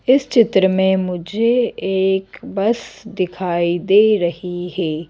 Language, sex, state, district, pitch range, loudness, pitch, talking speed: Hindi, female, Madhya Pradesh, Bhopal, 180-220 Hz, -17 LUFS, 190 Hz, 115 wpm